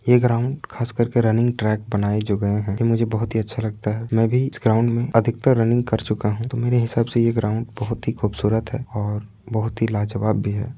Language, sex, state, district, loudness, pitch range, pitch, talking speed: Hindi, male, Jharkhand, Sahebganj, -21 LUFS, 105-120 Hz, 115 Hz, 230 wpm